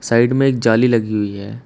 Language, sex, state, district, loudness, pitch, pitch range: Hindi, male, Uttar Pradesh, Shamli, -16 LUFS, 115 Hz, 110-125 Hz